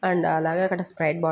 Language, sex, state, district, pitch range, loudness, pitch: Telugu, female, Andhra Pradesh, Guntur, 160-185 Hz, -24 LUFS, 175 Hz